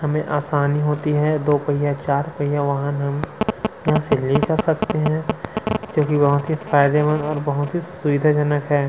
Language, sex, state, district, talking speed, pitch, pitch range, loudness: Hindi, male, Chhattisgarh, Sukma, 140 wpm, 150 Hz, 145-155 Hz, -20 LUFS